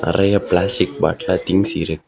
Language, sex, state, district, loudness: Tamil, male, Tamil Nadu, Kanyakumari, -18 LUFS